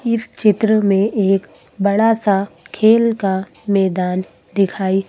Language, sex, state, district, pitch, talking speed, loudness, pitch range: Hindi, female, Madhya Pradesh, Bhopal, 200 Hz, 120 wpm, -16 LUFS, 195-220 Hz